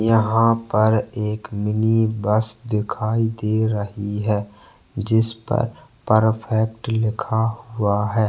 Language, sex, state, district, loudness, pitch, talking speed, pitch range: Hindi, male, Chhattisgarh, Bastar, -21 LUFS, 110 Hz, 110 wpm, 105-115 Hz